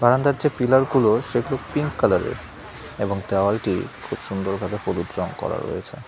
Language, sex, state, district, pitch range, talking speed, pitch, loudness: Bengali, male, West Bengal, Cooch Behar, 95-130 Hz, 160 wpm, 105 Hz, -23 LUFS